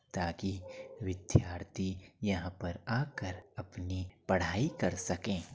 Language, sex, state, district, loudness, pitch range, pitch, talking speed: Hindi, male, Uttar Pradesh, Jyotiba Phule Nagar, -36 LUFS, 90-105 Hz, 95 Hz, 110 wpm